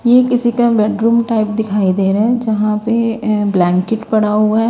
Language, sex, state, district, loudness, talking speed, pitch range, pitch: Hindi, female, Himachal Pradesh, Shimla, -14 LUFS, 190 wpm, 210-230 Hz, 220 Hz